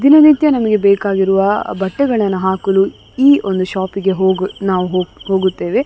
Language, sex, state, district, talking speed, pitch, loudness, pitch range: Kannada, female, Karnataka, Dakshina Kannada, 125 wpm, 195 Hz, -14 LUFS, 190-220 Hz